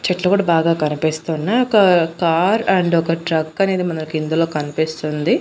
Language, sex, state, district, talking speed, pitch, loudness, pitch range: Telugu, female, Andhra Pradesh, Annamaya, 145 wpm, 165 Hz, -17 LUFS, 155-185 Hz